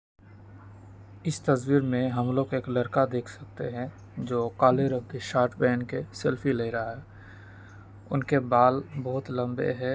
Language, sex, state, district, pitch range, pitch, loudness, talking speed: Hindi, male, Uttar Pradesh, Deoria, 105-130 Hz, 125 Hz, -27 LUFS, 155 wpm